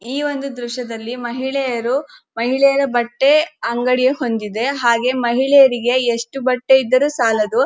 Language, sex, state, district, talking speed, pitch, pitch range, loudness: Kannada, female, Karnataka, Dharwad, 100 wpm, 250 Hz, 235-270 Hz, -17 LUFS